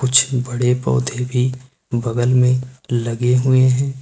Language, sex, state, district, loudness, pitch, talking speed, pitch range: Hindi, male, Uttar Pradesh, Lucknow, -18 LUFS, 125 Hz, 135 wpm, 120-130 Hz